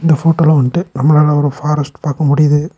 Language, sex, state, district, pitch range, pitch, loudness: Tamil, male, Tamil Nadu, Nilgiris, 145-155 Hz, 150 Hz, -13 LUFS